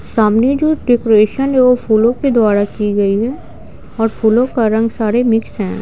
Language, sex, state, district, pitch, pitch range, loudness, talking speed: Hindi, female, Bihar, Patna, 225 Hz, 215-245 Hz, -13 LUFS, 185 wpm